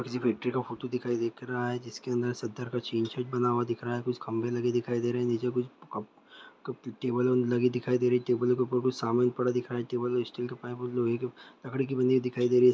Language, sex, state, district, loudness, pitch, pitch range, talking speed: Maithili, male, Bihar, Araria, -30 LUFS, 125 Hz, 120-125 Hz, 280 wpm